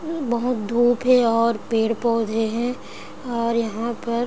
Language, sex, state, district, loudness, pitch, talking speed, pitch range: Hindi, female, Bihar, Sitamarhi, -21 LUFS, 235 Hz, 155 wpm, 230-245 Hz